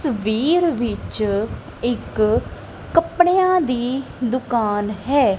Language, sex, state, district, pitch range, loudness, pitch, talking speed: Punjabi, female, Punjab, Kapurthala, 215-305 Hz, -20 LUFS, 245 Hz, 80 wpm